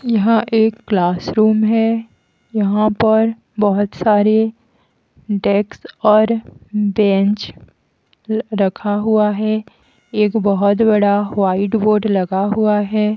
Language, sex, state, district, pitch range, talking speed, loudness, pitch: Hindi, female, Haryana, Jhajjar, 205-220 Hz, 105 wpm, -16 LUFS, 215 Hz